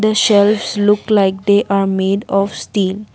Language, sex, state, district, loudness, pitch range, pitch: English, female, Assam, Kamrup Metropolitan, -14 LUFS, 195-210 Hz, 200 Hz